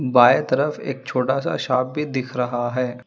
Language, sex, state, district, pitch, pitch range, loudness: Hindi, female, Telangana, Hyderabad, 125 Hz, 125-130 Hz, -21 LUFS